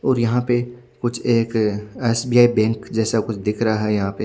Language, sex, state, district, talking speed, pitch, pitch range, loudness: Hindi, male, Odisha, Khordha, 200 wpm, 115 Hz, 110-120 Hz, -20 LUFS